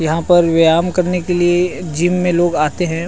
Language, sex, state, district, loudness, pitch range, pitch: Chhattisgarhi, male, Chhattisgarh, Rajnandgaon, -14 LUFS, 165-180 Hz, 175 Hz